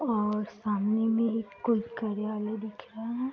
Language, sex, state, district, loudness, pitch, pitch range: Hindi, female, Bihar, Darbhanga, -30 LUFS, 220 Hz, 210-230 Hz